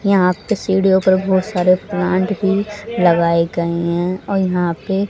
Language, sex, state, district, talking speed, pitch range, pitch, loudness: Hindi, female, Haryana, Jhajjar, 165 wpm, 180-195 Hz, 185 Hz, -17 LUFS